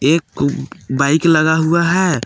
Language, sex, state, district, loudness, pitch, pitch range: Hindi, male, Jharkhand, Palamu, -15 LUFS, 160 Hz, 145-170 Hz